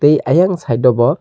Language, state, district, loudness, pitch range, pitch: Kokborok, Tripura, Dhalai, -13 LUFS, 125-170 Hz, 145 Hz